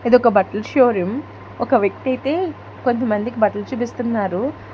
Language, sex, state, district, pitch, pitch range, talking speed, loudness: Telugu, female, Telangana, Hyderabad, 240 Hz, 210-260 Hz, 125 wpm, -19 LUFS